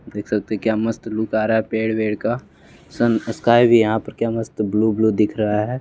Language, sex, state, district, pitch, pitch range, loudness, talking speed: Hindi, male, Bihar, West Champaran, 110 Hz, 105-110 Hz, -19 LUFS, 250 wpm